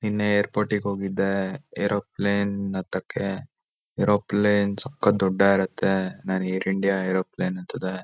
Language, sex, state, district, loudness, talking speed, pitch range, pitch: Kannada, male, Karnataka, Shimoga, -24 LUFS, 110 wpm, 95-100 Hz, 100 Hz